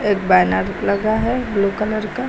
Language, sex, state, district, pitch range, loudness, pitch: Hindi, female, Uttar Pradesh, Lucknow, 200-220 Hz, -18 LUFS, 210 Hz